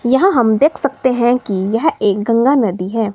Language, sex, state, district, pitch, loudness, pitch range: Hindi, female, Himachal Pradesh, Shimla, 240 Hz, -14 LUFS, 215-265 Hz